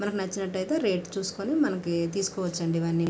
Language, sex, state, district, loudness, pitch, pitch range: Telugu, female, Andhra Pradesh, Srikakulam, -28 LUFS, 190 Hz, 170-195 Hz